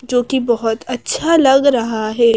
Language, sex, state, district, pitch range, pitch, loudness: Hindi, female, Madhya Pradesh, Bhopal, 230-265 Hz, 245 Hz, -15 LUFS